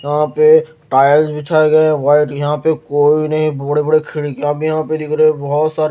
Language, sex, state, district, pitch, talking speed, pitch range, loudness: Hindi, male, Bihar, Patna, 155 Hz, 205 wpm, 145-155 Hz, -14 LUFS